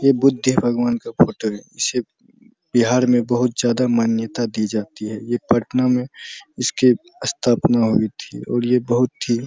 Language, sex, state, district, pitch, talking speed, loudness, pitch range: Hindi, male, Bihar, Araria, 120 Hz, 170 wpm, -19 LUFS, 115-125 Hz